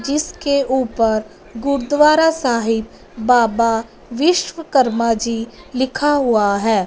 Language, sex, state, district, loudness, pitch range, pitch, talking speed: Hindi, female, Punjab, Fazilka, -17 LUFS, 225-285 Hz, 250 Hz, 85 wpm